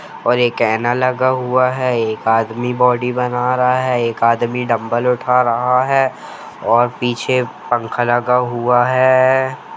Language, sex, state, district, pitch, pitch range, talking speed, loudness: Hindi, male, Jharkhand, Jamtara, 125 Hz, 120-125 Hz, 155 wpm, -16 LUFS